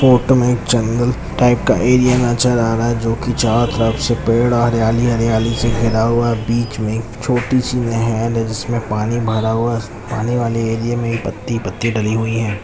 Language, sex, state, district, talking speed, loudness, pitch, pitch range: Hindi, male, Bihar, Jamui, 210 wpm, -16 LUFS, 115 Hz, 115-120 Hz